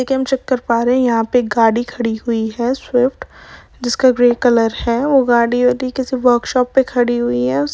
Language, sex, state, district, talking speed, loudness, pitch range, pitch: Hindi, female, Andhra Pradesh, Visakhapatnam, 165 wpm, -15 LUFS, 235-255 Hz, 245 Hz